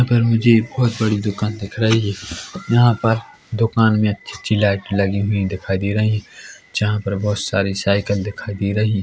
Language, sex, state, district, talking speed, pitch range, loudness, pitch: Hindi, male, Chhattisgarh, Korba, 205 wpm, 100-110 Hz, -19 LUFS, 105 Hz